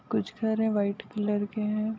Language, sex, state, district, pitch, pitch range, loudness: Hindi, female, Rajasthan, Nagaur, 215 Hz, 205-220 Hz, -29 LUFS